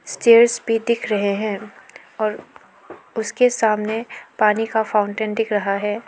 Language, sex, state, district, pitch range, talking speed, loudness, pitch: Hindi, female, Arunachal Pradesh, Lower Dibang Valley, 210-225 Hz, 140 wpm, -19 LUFS, 220 Hz